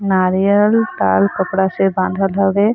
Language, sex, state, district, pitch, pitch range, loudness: Chhattisgarhi, female, Chhattisgarh, Sarguja, 195 Hz, 185-200 Hz, -15 LUFS